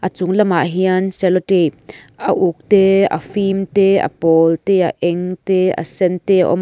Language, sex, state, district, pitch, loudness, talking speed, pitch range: Mizo, female, Mizoram, Aizawl, 185 Hz, -15 LUFS, 215 wpm, 175-195 Hz